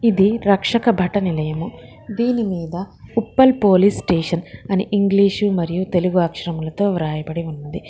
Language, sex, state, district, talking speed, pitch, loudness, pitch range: Telugu, female, Telangana, Hyderabad, 115 wpm, 190 Hz, -19 LUFS, 170-205 Hz